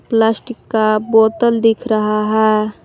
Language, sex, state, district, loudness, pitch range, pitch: Hindi, female, Jharkhand, Palamu, -15 LUFS, 215-225 Hz, 220 Hz